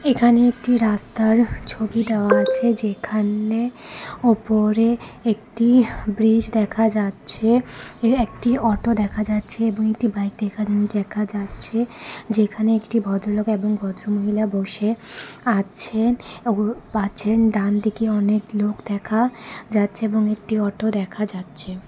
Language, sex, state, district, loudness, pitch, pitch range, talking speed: Bengali, female, Tripura, West Tripura, -20 LUFS, 215 Hz, 210-230 Hz, 105 wpm